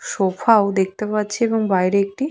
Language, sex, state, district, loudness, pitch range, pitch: Bengali, female, West Bengal, Purulia, -19 LUFS, 190-220 Hz, 205 Hz